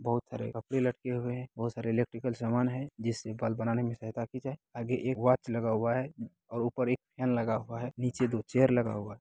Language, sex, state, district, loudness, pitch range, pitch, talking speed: Hindi, male, Bihar, Bhagalpur, -32 LUFS, 115-125 Hz, 120 Hz, 240 wpm